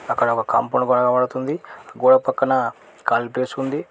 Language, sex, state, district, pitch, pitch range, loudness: Telugu, male, Telangana, Mahabubabad, 130 Hz, 125-135 Hz, -20 LUFS